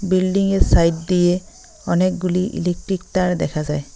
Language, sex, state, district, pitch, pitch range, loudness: Bengali, female, West Bengal, Cooch Behar, 180 Hz, 170-185 Hz, -19 LUFS